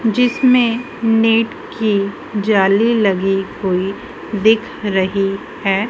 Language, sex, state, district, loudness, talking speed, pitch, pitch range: Hindi, female, Madhya Pradesh, Dhar, -16 LUFS, 90 wpm, 210 Hz, 195-225 Hz